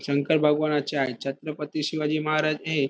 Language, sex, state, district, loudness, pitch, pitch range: Marathi, male, Maharashtra, Pune, -25 LUFS, 150 Hz, 140-155 Hz